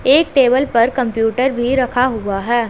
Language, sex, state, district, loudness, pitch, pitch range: Hindi, female, Punjab, Pathankot, -15 LUFS, 245 Hz, 230-260 Hz